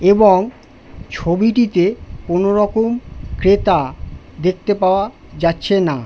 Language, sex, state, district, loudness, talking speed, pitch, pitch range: Bengali, male, West Bengal, Jhargram, -16 LUFS, 90 wpm, 190 Hz, 175-210 Hz